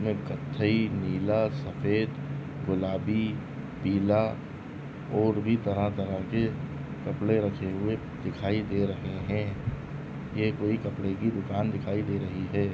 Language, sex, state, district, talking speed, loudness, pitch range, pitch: Hindi, male, Chhattisgarh, Rajnandgaon, 125 wpm, -30 LUFS, 100-135 Hz, 110 Hz